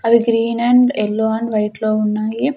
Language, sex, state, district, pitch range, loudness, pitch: Telugu, female, Andhra Pradesh, Sri Satya Sai, 215-235 Hz, -16 LUFS, 225 Hz